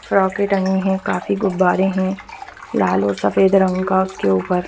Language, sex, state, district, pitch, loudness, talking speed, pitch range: Hindi, female, Bihar, Gopalganj, 190 Hz, -18 LUFS, 190 wpm, 180-195 Hz